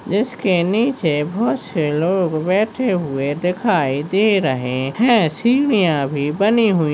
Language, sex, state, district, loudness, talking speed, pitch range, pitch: Hindi, male, Maharashtra, Solapur, -18 LUFS, 130 wpm, 150-220 Hz, 180 Hz